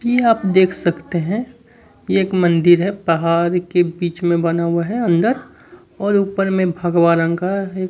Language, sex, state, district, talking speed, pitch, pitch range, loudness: Hindi, male, Bihar, Kaimur, 180 wpm, 180 Hz, 170-195 Hz, -17 LUFS